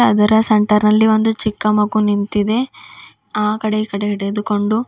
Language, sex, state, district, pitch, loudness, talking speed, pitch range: Kannada, female, Karnataka, Bidar, 215 Hz, -16 LUFS, 125 wpm, 210-220 Hz